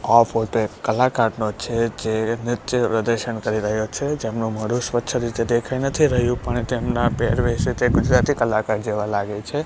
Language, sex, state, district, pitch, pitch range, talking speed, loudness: Gujarati, male, Gujarat, Gandhinagar, 115 Hz, 110-125 Hz, 170 wpm, -21 LUFS